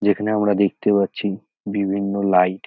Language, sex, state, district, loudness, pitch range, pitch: Bengali, male, West Bengal, North 24 Parganas, -20 LUFS, 100-105 Hz, 100 Hz